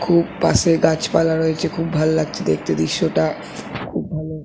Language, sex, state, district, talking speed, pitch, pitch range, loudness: Bengali, male, West Bengal, Kolkata, 175 wpm, 160 Hz, 155-165 Hz, -19 LUFS